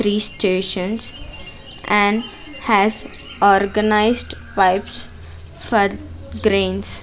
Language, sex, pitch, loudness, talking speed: English, female, 200 Hz, -17 LUFS, 70 wpm